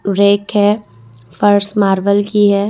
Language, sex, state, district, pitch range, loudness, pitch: Hindi, female, Jharkhand, Ranchi, 195-205 Hz, -13 LUFS, 200 Hz